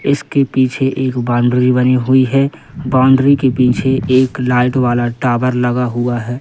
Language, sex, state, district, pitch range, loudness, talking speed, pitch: Hindi, male, Madhya Pradesh, Katni, 125-130 Hz, -14 LUFS, 160 wpm, 130 Hz